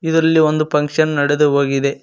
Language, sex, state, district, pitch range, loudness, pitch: Kannada, male, Karnataka, Koppal, 145-155 Hz, -15 LUFS, 150 Hz